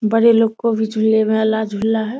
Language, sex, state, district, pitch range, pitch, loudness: Hindi, female, Bihar, Samastipur, 220-225 Hz, 220 Hz, -16 LUFS